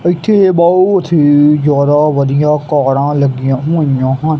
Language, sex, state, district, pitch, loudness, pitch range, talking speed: Punjabi, male, Punjab, Kapurthala, 150 Hz, -11 LUFS, 140-165 Hz, 120 wpm